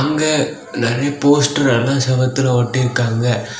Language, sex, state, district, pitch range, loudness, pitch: Tamil, male, Tamil Nadu, Kanyakumari, 120-145 Hz, -16 LUFS, 130 Hz